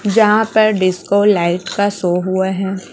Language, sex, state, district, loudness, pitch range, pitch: Hindi, female, Chhattisgarh, Raipur, -15 LUFS, 185-210 Hz, 195 Hz